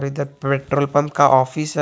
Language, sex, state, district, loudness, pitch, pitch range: Hindi, male, Jharkhand, Garhwa, -18 LUFS, 140 Hz, 140-145 Hz